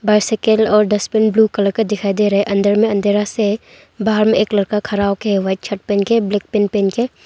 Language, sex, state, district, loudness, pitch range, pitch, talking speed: Hindi, female, Arunachal Pradesh, Longding, -16 LUFS, 200-220 Hz, 210 Hz, 230 wpm